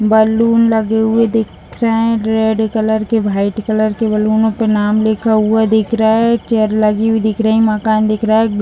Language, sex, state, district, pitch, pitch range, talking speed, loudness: Hindi, female, Bihar, Jahanabad, 220 Hz, 215-225 Hz, 210 wpm, -13 LUFS